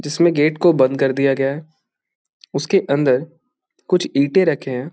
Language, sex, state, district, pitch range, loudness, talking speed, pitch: Hindi, male, Bihar, Bhagalpur, 135-165 Hz, -17 LUFS, 170 wpm, 145 Hz